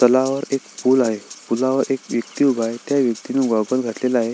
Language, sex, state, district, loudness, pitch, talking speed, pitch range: Marathi, male, Maharashtra, Sindhudurg, -20 LUFS, 130 Hz, 195 wpm, 115-135 Hz